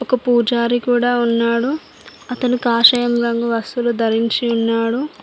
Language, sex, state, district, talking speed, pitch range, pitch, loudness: Telugu, female, Telangana, Mahabubabad, 115 wpm, 235-245 Hz, 240 Hz, -16 LUFS